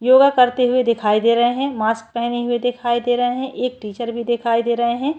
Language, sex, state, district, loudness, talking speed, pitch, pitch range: Hindi, female, Chhattisgarh, Kabirdham, -18 LUFS, 245 wpm, 240 Hz, 235-250 Hz